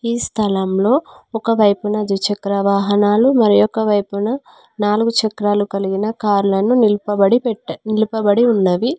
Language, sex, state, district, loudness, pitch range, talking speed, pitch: Telugu, female, Telangana, Mahabubabad, -16 LUFS, 200-225 Hz, 100 wpm, 210 Hz